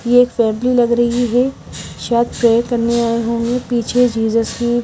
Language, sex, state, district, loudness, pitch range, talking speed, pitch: Hindi, female, Himachal Pradesh, Shimla, -16 LUFS, 230-245 Hz, 175 wpm, 235 Hz